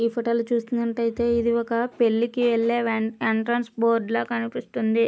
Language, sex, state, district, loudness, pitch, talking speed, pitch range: Telugu, female, Andhra Pradesh, Krishna, -24 LUFS, 230 Hz, 155 wpm, 230-235 Hz